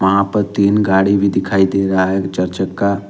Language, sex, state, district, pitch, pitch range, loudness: Hindi, male, Jharkhand, Ranchi, 100 Hz, 95-100 Hz, -15 LUFS